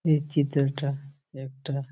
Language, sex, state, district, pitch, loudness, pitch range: Bengali, male, West Bengal, Malda, 140 Hz, -28 LUFS, 140-145 Hz